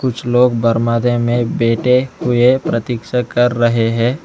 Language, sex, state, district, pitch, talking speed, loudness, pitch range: Hindi, male, Arunachal Pradesh, Lower Dibang Valley, 120 Hz, 140 wpm, -15 LUFS, 115-125 Hz